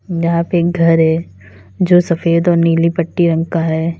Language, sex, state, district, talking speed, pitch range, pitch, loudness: Hindi, female, Uttar Pradesh, Lalitpur, 195 wpm, 165-170 Hz, 170 Hz, -14 LUFS